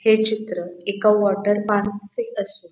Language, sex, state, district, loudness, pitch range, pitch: Marathi, female, Maharashtra, Pune, -21 LUFS, 200-215 Hz, 205 Hz